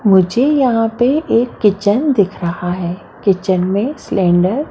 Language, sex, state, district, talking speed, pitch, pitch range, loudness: Hindi, female, Maharashtra, Mumbai Suburban, 155 wpm, 205 Hz, 185-245 Hz, -15 LUFS